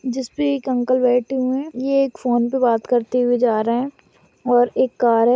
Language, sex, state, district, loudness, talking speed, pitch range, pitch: Hindi, female, Maharashtra, Chandrapur, -19 LUFS, 225 wpm, 240-260 Hz, 250 Hz